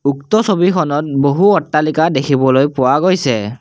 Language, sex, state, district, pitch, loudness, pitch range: Assamese, male, Assam, Kamrup Metropolitan, 145 Hz, -13 LUFS, 135-180 Hz